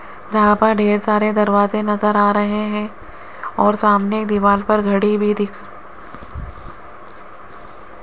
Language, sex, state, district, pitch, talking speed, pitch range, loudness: Hindi, female, Rajasthan, Jaipur, 210 Hz, 125 wpm, 205-210 Hz, -16 LUFS